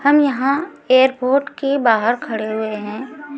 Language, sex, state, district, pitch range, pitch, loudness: Hindi, female, Chhattisgarh, Raipur, 230-280 Hz, 265 Hz, -17 LUFS